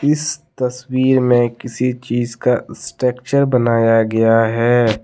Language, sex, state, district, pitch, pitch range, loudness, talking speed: Hindi, male, Jharkhand, Deoghar, 120 Hz, 115-125 Hz, -16 LUFS, 120 wpm